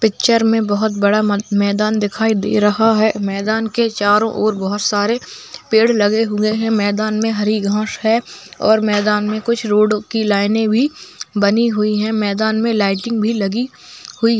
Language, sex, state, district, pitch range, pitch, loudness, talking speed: Hindi, female, Bihar, Jamui, 210-225 Hz, 215 Hz, -16 LUFS, 180 wpm